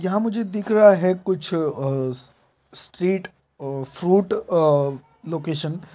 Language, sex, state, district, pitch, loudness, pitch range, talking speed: Hindi, male, Jharkhand, Jamtara, 170 Hz, -21 LUFS, 145-195 Hz, 120 wpm